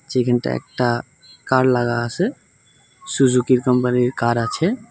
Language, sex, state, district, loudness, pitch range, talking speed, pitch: Bengali, male, West Bengal, Alipurduar, -19 LUFS, 120-140 Hz, 110 wpm, 125 Hz